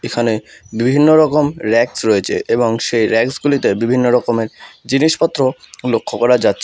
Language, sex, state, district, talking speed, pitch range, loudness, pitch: Bengali, male, West Bengal, Alipurduar, 125 wpm, 115-140 Hz, -15 LUFS, 120 Hz